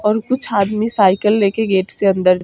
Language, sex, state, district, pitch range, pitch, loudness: Bajjika, female, Bihar, Vaishali, 190-215 Hz, 205 Hz, -16 LUFS